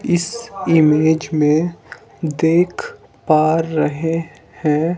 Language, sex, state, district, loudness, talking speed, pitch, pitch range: Hindi, male, Himachal Pradesh, Shimla, -17 LUFS, 85 wpm, 160 Hz, 155-170 Hz